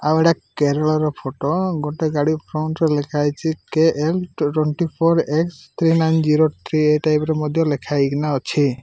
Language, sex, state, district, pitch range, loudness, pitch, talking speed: Odia, male, Odisha, Malkangiri, 150-160 Hz, -19 LUFS, 155 Hz, 175 wpm